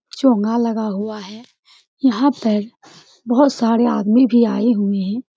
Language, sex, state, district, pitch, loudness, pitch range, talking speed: Hindi, female, Bihar, Saran, 230 Hz, -17 LUFS, 215-250 Hz, 145 wpm